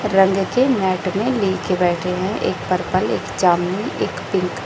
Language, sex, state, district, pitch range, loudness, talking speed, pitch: Hindi, female, Chhattisgarh, Raipur, 180-210 Hz, -19 LUFS, 195 wpm, 190 Hz